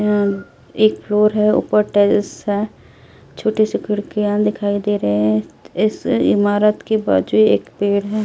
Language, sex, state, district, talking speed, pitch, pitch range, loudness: Hindi, female, Delhi, New Delhi, 145 wpm, 205 Hz, 200-210 Hz, -17 LUFS